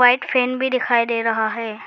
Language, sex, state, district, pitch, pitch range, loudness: Hindi, male, Arunachal Pradesh, Lower Dibang Valley, 240 Hz, 230-255 Hz, -19 LUFS